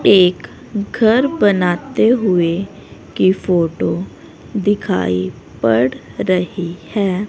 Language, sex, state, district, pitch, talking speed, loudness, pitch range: Hindi, female, Haryana, Rohtak, 185 Hz, 80 wpm, -16 LUFS, 170-205 Hz